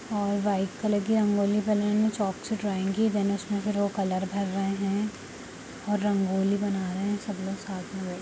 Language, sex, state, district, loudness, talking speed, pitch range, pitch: Hindi, female, Bihar, Jamui, -28 LUFS, 210 wpm, 195-210 Hz, 200 Hz